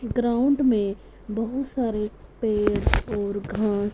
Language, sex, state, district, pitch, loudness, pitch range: Hindi, female, Punjab, Fazilka, 215 Hz, -25 LUFS, 205-245 Hz